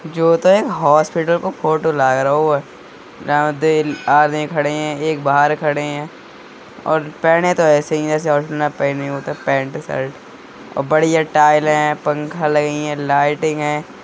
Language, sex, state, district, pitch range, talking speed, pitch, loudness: Hindi, male, Uttar Pradesh, Budaun, 145-155 Hz, 170 wpm, 150 Hz, -16 LUFS